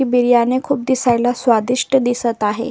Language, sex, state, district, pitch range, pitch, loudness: Marathi, female, Maharashtra, Solapur, 235-255 Hz, 245 Hz, -16 LUFS